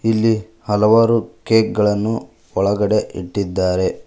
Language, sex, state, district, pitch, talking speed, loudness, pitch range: Kannada, male, Karnataka, Koppal, 105 Hz, 90 wpm, -18 LUFS, 95-110 Hz